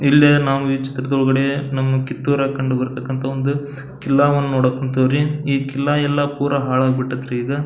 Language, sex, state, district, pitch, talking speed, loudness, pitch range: Kannada, male, Karnataka, Belgaum, 135 Hz, 165 wpm, -18 LUFS, 130-140 Hz